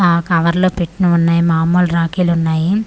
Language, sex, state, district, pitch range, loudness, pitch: Telugu, female, Andhra Pradesh, Manyam, 165-180 Hz, -14 LUFS, 170 Hz